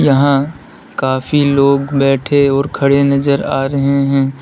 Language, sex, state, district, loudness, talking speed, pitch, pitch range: Hindi, male, Uttar Pradesh, Lalitpur, -13 LUFS, 135 wpm, 140 Hz, 135-140 Hz